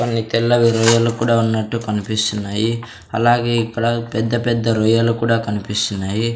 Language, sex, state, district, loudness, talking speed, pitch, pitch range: Telugu, male, Andhra Pradesh, Sri Satya Sai, -18 LUFS, 120 wpm, 115 Hz, 110-115 Hz